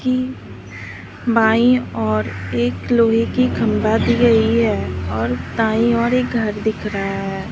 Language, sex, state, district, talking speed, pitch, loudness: Hindi, female, Uttar Pradesh, Lalitpur, 145 wpm, 210 Hz, -18 LUFS